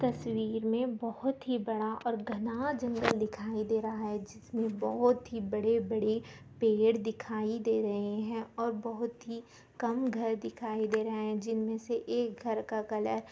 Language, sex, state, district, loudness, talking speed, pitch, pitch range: Hindi, female, Jharkhand, Sahebganj, -33 LUFS, 170 wpm, 225 Hz, 220-235 Hz